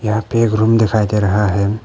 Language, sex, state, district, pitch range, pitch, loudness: Hindi, male, Arunachal Pradesh, Papum Pare, 105-110 Hz, 110 Hz, -15 LUFS